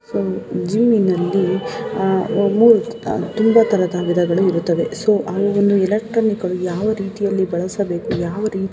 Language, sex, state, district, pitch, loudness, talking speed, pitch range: Kannada, female, Karnataka, Shimoga, 195 Hz, -18 LUFS, 135 wpm, 180-210 Hz